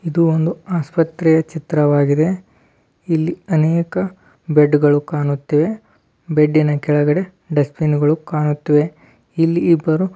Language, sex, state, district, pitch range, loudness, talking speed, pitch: Kannada, male, Karnataka, Dharwad, 150-170 Hz, -17 LUFS, 100 wpm, 155 Hz